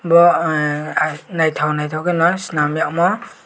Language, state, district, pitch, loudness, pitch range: Kokborok, Tripura, West Tripura, 165 Hz, -17 LUFS, 150-175 Hz